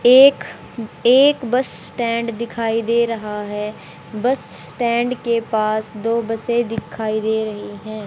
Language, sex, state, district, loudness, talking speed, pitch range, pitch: Hindi, male, Haryana, Rohtak, -19 LUFS, 135 wpm, 215-235 Hz, 230 Hz